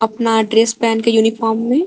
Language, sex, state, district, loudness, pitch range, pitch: Hindi, female, Jharkhand, Garhwa, -15 LUFS, 225-230 Hz, 225 Hz